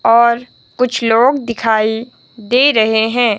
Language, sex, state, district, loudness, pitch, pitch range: Hindi, male, Himachal Pradesh, Shimla, -13 LUFS, 235 Hz, 220-245 Hz